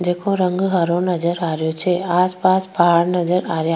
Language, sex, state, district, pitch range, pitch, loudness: Rajasthani, female, Rajasthan, Nagaur, 170-185 Hz, 180 Hz, -17 LUFS